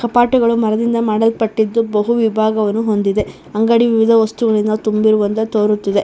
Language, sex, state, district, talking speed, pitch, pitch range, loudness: Kannada, female, Karnataka, Bangalore, 110 wpm, 220 Hz, 215-230 Hz, -15 LUFS